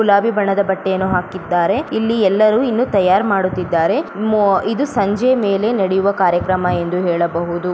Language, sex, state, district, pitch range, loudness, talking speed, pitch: Kannada, female, Karnataka, Raichur, 180-215 Hz, -16 LUFS, 130 wpm, 195 Hz